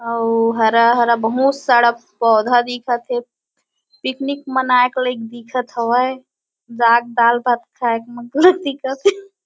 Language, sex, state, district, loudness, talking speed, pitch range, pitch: Chhattisgarhi, female, Chhattisgarh, Kabirdham, -17 LUFS, 120 wpm, 235-260 Hz, 240 Hz